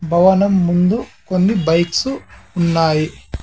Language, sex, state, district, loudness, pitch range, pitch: Telugu, male, Andhra Pradesh, Sri Satya Sai, -16 LUFS, 165-190 Hz, 175 Hz